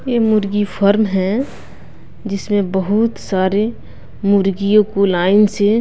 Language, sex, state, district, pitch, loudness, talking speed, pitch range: Hindi, female, Bihar, West Champaran, 205 Hz, -16 LUFS, 115 wpm, 195-215 Hz